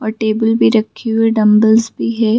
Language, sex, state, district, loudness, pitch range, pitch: Hindi, female, Jharkhand, Sahebganj, -13 LUFS, 220-225 Hz, 220 Hz